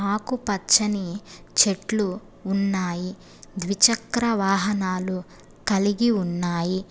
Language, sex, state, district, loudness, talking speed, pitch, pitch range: Telugu, female, Telangana, Hyderabad, -23 LUFS, 70 wpm, 195 Hz, 185-210 Hz